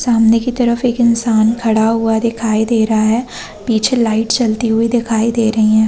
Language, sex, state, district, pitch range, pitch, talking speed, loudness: Hindi, female, Chhattisgarh, Balrampur, 220-235 Hz, 225 Hz, 205 wpm, -14 LUFS